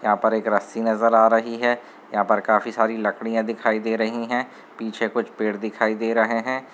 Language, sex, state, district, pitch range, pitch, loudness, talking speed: Hindi, male, Bihar, Gopalganj, 110-115 Hz, 115 Hz, -22 LUFS, 215 wpm